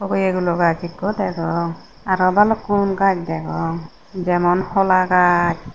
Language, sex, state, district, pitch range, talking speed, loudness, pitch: Chakma, female, Tripura, Unakoti, 170-195 Hz, 125 wpm, -18 LUFS, 180 Hz